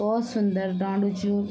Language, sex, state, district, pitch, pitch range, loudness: Garhwali, female, Uttarakhand, Tehri Garhwal, 205 Hz, 195-210 Hz, -26 LUFS